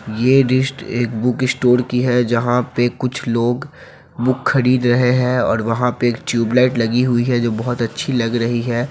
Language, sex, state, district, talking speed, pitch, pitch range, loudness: Hindi, male, Bihar, Sitamarhi, 200 wpm, 125 Hz, 120-125 Hz, -17 LUFS